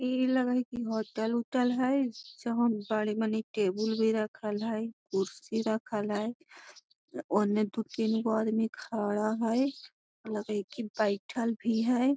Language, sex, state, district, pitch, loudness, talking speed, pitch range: Magahi, female, Bihar, Gaya, 220 Hz, -31 LUFS, 155 wpm, 215-240 Hz